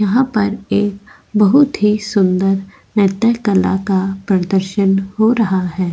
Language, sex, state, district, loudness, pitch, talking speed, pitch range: Hindi, female, Goa, North and South Goa, -15 LUFS, 200 Hz, 130 wpm, 190-215 Hz